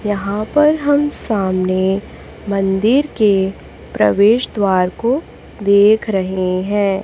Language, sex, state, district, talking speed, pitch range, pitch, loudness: Hindi, female, Chhattisgarh, Raipur, 100 wpm, 190-225 Hz, 205 Hz, -16 LUFS